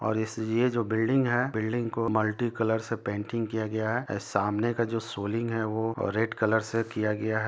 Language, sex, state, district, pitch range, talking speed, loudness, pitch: Hindi, male, Jharkhand, Jamtara, 110-115 Hz, 225 wpm, -28 LUFS, 110 Hz